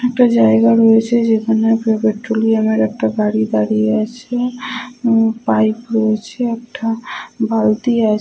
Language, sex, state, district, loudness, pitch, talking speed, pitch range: Bengali, female, West Bengal, Purulia, -15 LUFS, 225 Hz, 115 wpm, 215-235 Hz